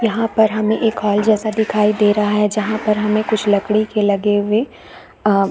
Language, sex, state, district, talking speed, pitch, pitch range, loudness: Hindi, female, Chhattisgarh, Bastar, 215 wpm, 210 Hz, 210-220 Hz, -16 LUFS